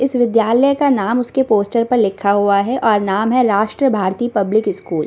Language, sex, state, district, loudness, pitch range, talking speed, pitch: Hindi, female, Bihar, Samastipur, -15 LUFS, 200-245 Hz, 215 wpm, 225 Hz